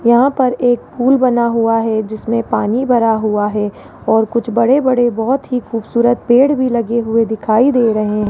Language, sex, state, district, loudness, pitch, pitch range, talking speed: Hindi, female, Rajasthan, Jaipur, -14 LUFS, 235 Hz, 220-245 Hz, 195 wpm